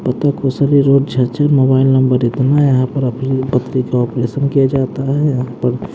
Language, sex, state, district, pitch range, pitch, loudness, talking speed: Hindi, male, Haryana, Jhajjar, 125-140 Hz, 130 Hz, -14 LUFS, 170 wpm